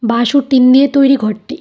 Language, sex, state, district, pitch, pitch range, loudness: Bengali, female, Tripura, Dhalai, 265 Hz, 235-280 Hz, -11 LUFS